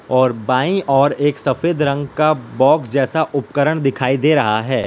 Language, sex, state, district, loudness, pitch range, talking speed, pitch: Hindi, male, Gujarat, Valsad, -16 LUFS, 130-155 Hz, 170 wpm, 140 Hz